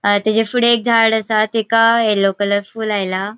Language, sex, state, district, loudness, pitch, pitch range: Konkani, female, Goa, North and South Goa, -15 LUFS, 220 Hz, 205-225 Hz